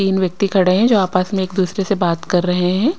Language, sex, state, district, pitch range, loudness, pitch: Hindi, female, Himachal Pradesh, Shimla, 180-200 Hz, -17 LUFS, 190 Hz